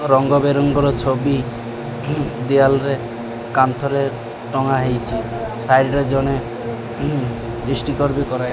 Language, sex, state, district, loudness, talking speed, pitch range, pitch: Odia, male, Odisha, Malkangiri, -19 LUFS, 85 wpm, 115-140 Hz, 130 Hz